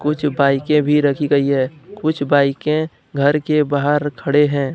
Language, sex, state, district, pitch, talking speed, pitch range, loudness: Hindi, male, Jharkhand, Deoghar, 145 Hz, 175 wpm, 140-150 Hz, -17 LUFS